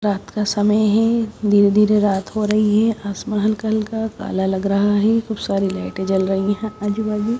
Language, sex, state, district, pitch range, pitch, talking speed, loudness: Hindi, female, Odisha, Sambalpur, 200-220 Hz, 210 Hz, 205 wpm, -19 LUFS